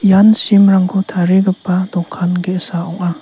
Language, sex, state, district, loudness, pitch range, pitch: Garo, male, Meghalaya, South Garo Hills, -13 LUFS, 175-195 Hz, 185 Hz